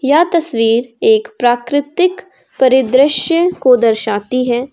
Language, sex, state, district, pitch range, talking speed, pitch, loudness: Hindi, female, Jharkhand, Ranchi, 240-335 Hz, 100 wpm, 260 Hz, -13 LUFS